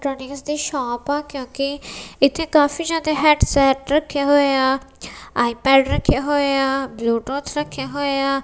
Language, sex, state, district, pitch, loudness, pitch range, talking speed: Punjabi, female, Punjab, Kapurthala, 275 Hz, -19 LUFS, 270-290 Hz, 170 wpm